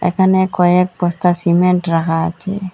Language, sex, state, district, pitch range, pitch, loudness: Bengali, female, Assam, Hailakandi, 175-185 Hz, 180 Hz, -15 LUFS